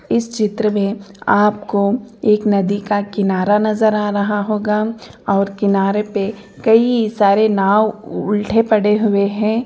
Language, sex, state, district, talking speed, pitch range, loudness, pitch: Hindi, female, Bihar, Jahanabad, 135 wpm, 200-215 Hz, -16 LUFS, 210 Hz